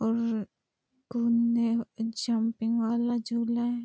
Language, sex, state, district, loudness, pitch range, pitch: Hindi, female, Uttar Pradesh, Hamirpur, -29 LUFS, 230-235 Hz, 235 Hz